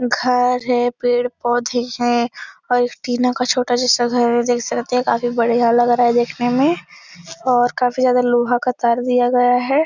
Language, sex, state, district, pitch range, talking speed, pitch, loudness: Hindi, female, Uttar Pradesh, Etah, 240-250 Hz, 190 wpm, 245 Hz, -17 LUFS